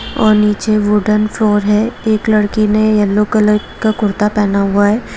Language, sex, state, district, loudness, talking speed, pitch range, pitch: Hindi, female, Jharkhand, Jamtara, -13 LUFS, 175 wpm, 210-215 Hz, 210 Hz